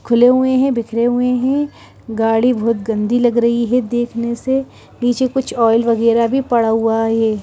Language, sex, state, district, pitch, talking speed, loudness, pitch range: Hindi, female, Himachal Pradesh, Shimla, 235 Hz, 175 wpm, -16 LUFS, 225-250 Hz